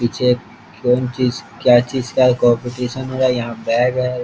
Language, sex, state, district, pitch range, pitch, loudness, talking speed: Hindi, male, Bihar, East Champaran, 120-125 Hz, 125 Hz, -17 LUFS, 170 wpm